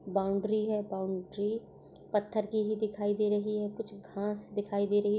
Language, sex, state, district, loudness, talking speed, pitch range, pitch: Hindi, female, Uttar Pradesh, Etah, -33 LUFS, 185 wpm, 200-215 Hz, 205 Hz